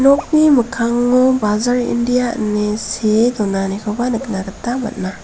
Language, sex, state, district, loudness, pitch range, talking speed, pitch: Garo, female, Meghalaya, South Garo Hills, -16 LUFS, 210-245 Hz, 115 wpm, 235 Hz